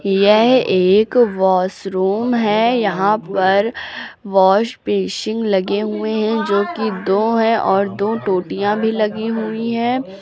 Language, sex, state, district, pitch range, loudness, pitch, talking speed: Hindi, female, Uttar Pradesh, Lucknow, 195-225 Hz, -16 LUFS, 210 Hz, 130 wpm